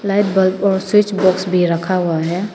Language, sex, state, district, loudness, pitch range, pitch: Hindi, female, Arunachal Pradesh, Papum Pare, -16 LUFS, 180-195 Hz, 190 Hz